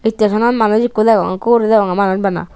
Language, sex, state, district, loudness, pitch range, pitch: Chakma, female, Tripura, Unakoti, -13 LUFS, 200-225 Hz, 220 Hz